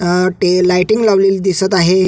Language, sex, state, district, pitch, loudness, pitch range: Marathi, male, Maharashtra, Solapur, 185 Hz, -13 LUFS, 180-195 Hz